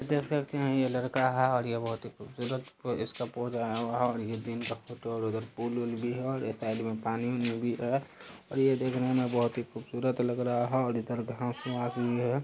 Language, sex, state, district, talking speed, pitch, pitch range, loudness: Hindi, male, Bihar, Araria, 235 wpm, 120 Hz, 115-130 Hz, -32 LUFS